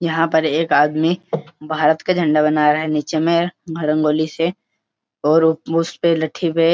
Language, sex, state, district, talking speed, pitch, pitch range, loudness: Hindi, male, Uttarakhand, Uttarkashi, 170 wpm, 160 Hz, 155-165 Hz, -18 LUFS